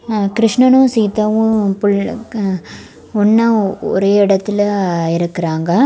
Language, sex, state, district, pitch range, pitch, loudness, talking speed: Tamil, female, Tamil Nadu, Kanyakumari, 195-220 Hz, 205 Hz, -14 LUFS, 90 wpm